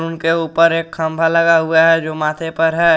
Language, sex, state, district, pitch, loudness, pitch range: Hindi, male, Jharkhand, Garhwa, 165 Hz, -15 LUFS, 160-165 Hz